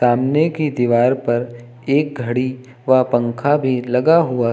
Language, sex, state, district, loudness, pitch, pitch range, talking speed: Hindi, male, Uttar Pradesh, Lucknow, -17 LUFS, 125 Hz, 120-140 Hz, 160 wpm